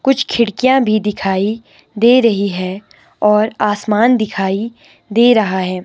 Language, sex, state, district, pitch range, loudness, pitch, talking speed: Hindi, female, Himachal Pradesh, Shimla, 200-235 Hz, -14 LUFS, 210 Hz, 135 wpm